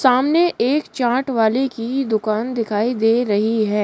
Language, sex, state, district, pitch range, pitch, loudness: Hindi, female, Uttar Pradesh, Shamli, 220-260 Hz, 235 Hz, -18 LUFS